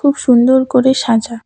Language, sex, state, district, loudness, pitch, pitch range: Bengali, female, West Bengal, Cooch Behar, -12 LUFS, 255 Hz, 235-265 Hz